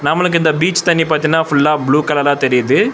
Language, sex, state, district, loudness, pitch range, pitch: Tamil, male, Tamil Nadu, Chennai, -13 LUFS, 145-165 Hz, 155 Hz